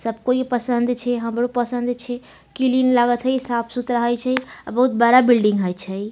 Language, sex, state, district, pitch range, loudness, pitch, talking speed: Maithili, female, Bihar, Samastipur, 235-250 Hz, -20 LUFS, 245 Hz, 185 wpm